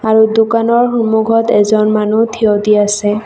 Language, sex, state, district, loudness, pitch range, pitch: Assamese, female, Assam, Kamrup Metropolitan, -12 LUFS, 210-225 Hz, 220 Hz